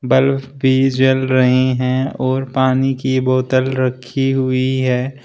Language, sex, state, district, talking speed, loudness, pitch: Hindi, male, Uttar Pradesh, Shamli, 135 wpm, -16 LUFS, 130 Hz